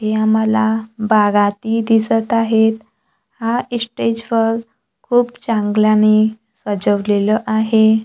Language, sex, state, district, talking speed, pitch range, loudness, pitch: Marathi, female, Maharashtra, Gondia, 80 wpm, 215-225 Hz, -16 LUFS, 220 Hz